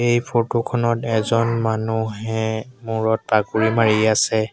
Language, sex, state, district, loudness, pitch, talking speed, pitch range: Assamese, male, Assam, Sonitpur, -20 LUFS, 110 Hz, 120 wpm, 110-115 Hz